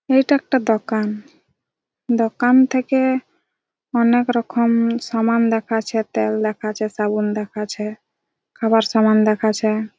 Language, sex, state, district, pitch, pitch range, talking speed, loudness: Bengali, female, West Bengal, Jhargram, 225 Hz, 215-245 Hz, 110 wpm, -19 LUFS